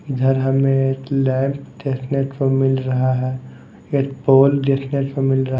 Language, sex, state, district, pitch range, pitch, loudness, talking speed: Hindi, male, Maharashtra, Mumbai Suburban, 130-135 Hz, 135 Hz, -18 LUFS, 160 wpm